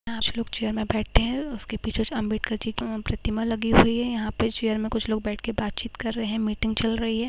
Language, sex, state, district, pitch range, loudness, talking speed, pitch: Hindi, female, Bihar, Araria, 220-230 Hz, -26 LUFS, 265 wpm, 225 Hz